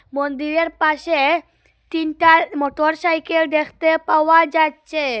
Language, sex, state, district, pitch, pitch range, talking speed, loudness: Bengali, female, Assam, Hailakandi, 315 Hz, 305-330 Hz, 90 wpm, -17 LUFS